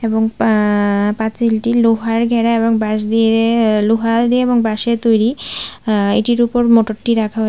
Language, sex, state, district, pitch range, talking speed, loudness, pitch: Bengali, female, Tripura, West Tripura, 220-230 Hz, 160 wpm, -15 LUFS, 225 Hz